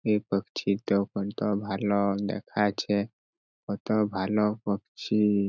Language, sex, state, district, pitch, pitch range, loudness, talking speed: Bengali, male, West Bengal, Purulia, 100 Hz, 100-105 Hz, -28 LUFS, 85 wpm